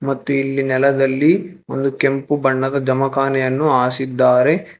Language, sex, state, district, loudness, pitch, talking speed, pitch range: Kannada, male, Karnataka, Bangalore, -17 LUFS, 135 Hz, 100 wpm, 130-140 Hz